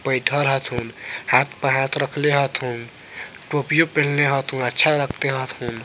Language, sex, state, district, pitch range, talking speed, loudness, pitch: Bajjika, male, Bihar, Vaishali, 130-145 Hz, 135 wpm, -20 LUFS, 135 Hz